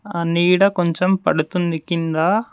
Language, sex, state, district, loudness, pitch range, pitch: Telugu, male, Telangana, Mahabubabad, -18 LUFS, 165-190 Hz, 175 Hz